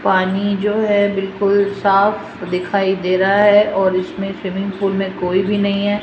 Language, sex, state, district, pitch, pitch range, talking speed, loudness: Hindi, female, Rajasthan, Jaipur, 195 Hz, 190-205 Hz, 180 wpm, -17 LUFS